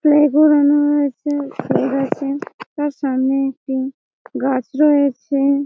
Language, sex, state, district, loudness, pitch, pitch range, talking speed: Bengali, female, West Bengal, Malda, -17 LUFS, 280 Hz, 270-295 Hz, 115 wpm